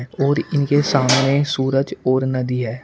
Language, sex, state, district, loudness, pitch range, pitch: Hindi, male, Uttar Pradesh, Shamli, -18 LUFS, 130-140 Hz, 135 Hz